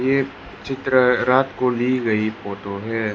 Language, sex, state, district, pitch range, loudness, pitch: Hindi, male, Arunachal Pradesh, Lower Dibang Valley, 105-130 Hz, -20 LUFS, 120 Hz